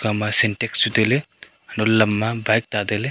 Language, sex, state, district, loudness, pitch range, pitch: Wancho, male, Arunachal Pradesh, Longding, -18 LUFS, 105-115 Hz, 110 Hz